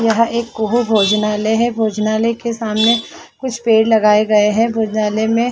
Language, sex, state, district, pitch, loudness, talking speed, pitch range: Hindi, female, Chhattisgarh, Balrampur, 225 Hz, -15 LUFS, 175 wpm, 215-230 Hz